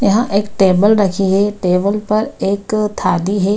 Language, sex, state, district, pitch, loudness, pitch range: Hindi, female, Bihar, Gaya, 200 Hz, -15 LUFS, 195-210 Hz